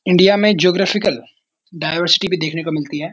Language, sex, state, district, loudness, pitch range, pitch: Hindi, male, Uttarakhand, Uttarkashi, -16 LUFS, 160-195 Hz, 180 Hz